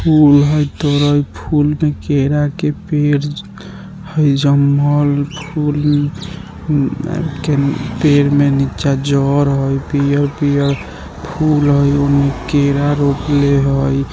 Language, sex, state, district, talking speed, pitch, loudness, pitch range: Maithili, male, Bihar, Muzaffarpur, 105 wpm, 145 Hz, -14 LUFS, 140-150 Hz